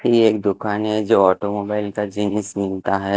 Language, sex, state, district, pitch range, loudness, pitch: Hindi, male, Himachal Pradesh, Shimla, 100-105 Hz, -20 LUFS, 105 Hz